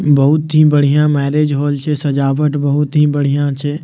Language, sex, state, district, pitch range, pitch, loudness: Maithili, male, Bihar, Madhepura, 140-150 Hz, 145 Hz, -14 LUFS